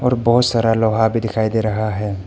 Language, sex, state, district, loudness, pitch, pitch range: Hindi, male, Arunachal Pradesh, Papum Pare, -17 LUFS, 110 Hz, 110-115 Hz